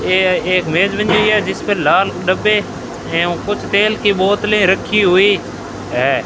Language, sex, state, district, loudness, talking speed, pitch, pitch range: Hindi, male, Rajasthan, Bikaner, -14 LUFS, 170 wpm, 200 Hz, 185-210 Hz